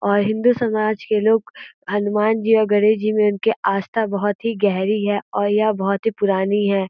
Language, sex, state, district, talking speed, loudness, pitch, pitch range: Hindi, female, Uttar Pradesh, Gorakhpur, 200 wpm, -19 LUFS, 210 Hz, 205-220 Hz